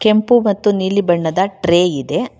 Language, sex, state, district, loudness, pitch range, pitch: Kannada, female, Karnataka, Bangalore, -15 LUFS, 175-210 Hz, 195 Hz